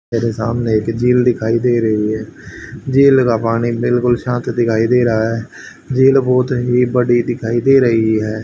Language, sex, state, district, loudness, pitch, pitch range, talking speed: Hindi, male, Haryana, Charkhi Dadri, -15 LUFS, 120 Hz, 115-125 Hz, 170 wpm